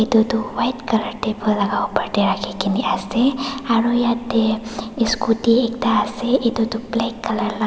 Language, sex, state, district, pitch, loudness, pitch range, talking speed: Nagamese, female, Nagaland, Dimapur, 230 Hz, -20 LUFS, 220-240 Hz, 170 wpm